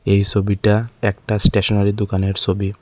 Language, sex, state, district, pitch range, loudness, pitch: Bengali, male, Tripura, Unakoti, 100-105 Hz, -18 LUFS, 100 Hz